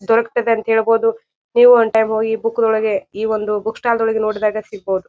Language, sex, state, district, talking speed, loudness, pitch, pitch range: Kannada, female, Karnataka, Bijapur, 190 wpm, -16 LUFS, 225 Hz, 215-230 Hz